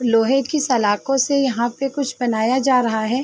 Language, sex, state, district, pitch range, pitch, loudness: Hindi, female, Uttar Pradesh, Varanasi, 230-275 Hz, 255 Hz, -19 LUFS